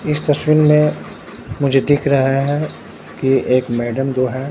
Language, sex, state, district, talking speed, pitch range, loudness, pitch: Hindi, male, Bihar, Katihar, 160 wpm, 130-150 Hz, -16 LUFS, 135 Hz